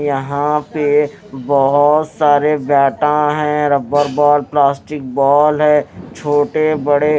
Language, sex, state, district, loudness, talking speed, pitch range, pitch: Hindi, male, Haryana, Rohtak, -14 LUFS, 115 wpm, 140-150 Hz, 145 Hz